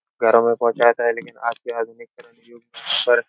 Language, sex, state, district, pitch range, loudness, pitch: Hindi, male, Uttar Pradesh, Etah, 115-145 Hz, -20 LUFS, 120 Hz